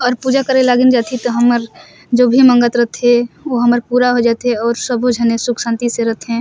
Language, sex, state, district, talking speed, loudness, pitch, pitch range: Surgujia, female, Chhattisgarh, Sarguja, 215 wpm, -14 LUFS, 245 Hz, 235-250 Hz